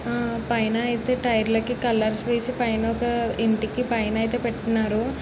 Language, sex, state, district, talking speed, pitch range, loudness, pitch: Telugu, female, Andhra Pradesh, Srikakulam, 125 wpm, 225-240 Hz, -24 LUFS, 230 Hz